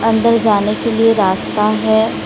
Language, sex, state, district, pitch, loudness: Hindi, female, Odisha, Sambalpur, 205 Hz, -14 LUFS